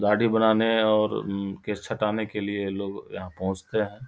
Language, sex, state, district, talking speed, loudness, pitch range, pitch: Maithili, male, Bihar, Samastipur, 160 wpm, -26 LUFS, 100-110 Hz, 105 Hz